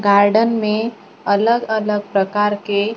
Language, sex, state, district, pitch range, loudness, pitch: Hindi, male, Maharashtra, Gondia, 205-220 Hz, -17 LUFS, 210 Hz